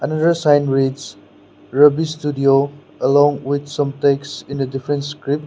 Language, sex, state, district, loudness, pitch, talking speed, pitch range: English, male, Nagaland, Dimapur, -17 LUFS, 145 Hz, 145 wpm, 135-145 Hz